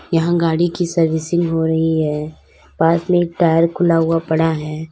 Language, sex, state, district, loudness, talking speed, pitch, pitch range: Hindi, female, Uttar Pradesh, Lalitpur, -17 LUFS, 185 wpm, 165 Hz, 160-170 Hz